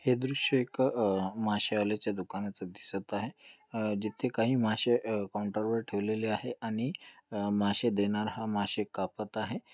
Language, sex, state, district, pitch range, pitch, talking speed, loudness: Marathi, male, Maharashtra, Dhule, 105-120 Hz, 110 Hz, 160 wpm, -32 LUFS